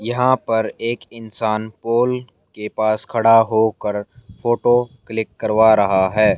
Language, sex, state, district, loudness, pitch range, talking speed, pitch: Hindi, male, Haryana, Jhajjar, -18 LUFS, 110-120 Hz, 130 wpm, 110 Hz